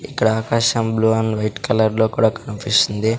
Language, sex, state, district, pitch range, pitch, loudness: Telugu, male, Andhra Pradesh, Sri Satya Sai, 110-115 Hz, 110 Hz, -18 LUFS